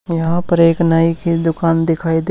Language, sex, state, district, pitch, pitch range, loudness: Hindi, male, Haryana, Charkhi Dadri, 165 Hz, 165-170 Hz, -15 LUFS